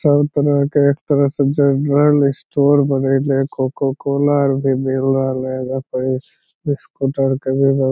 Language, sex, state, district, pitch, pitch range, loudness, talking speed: Magahi, male, Bihar, Lakhisarai, 140 Hz, 135-145 Hz, -17 LUFS, 160 wpm